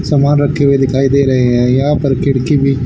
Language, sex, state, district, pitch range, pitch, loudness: Hindi, male, Haryana, Charkhi Dadri, 130-145 Hz, 140 Hz, -12 LUFS